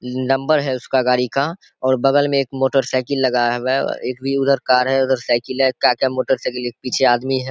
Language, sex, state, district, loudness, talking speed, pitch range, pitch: Hindi, male, Bihar, Saharsa, -18 LUFS, 215 wpm, 125-135 Hz, 130 Hz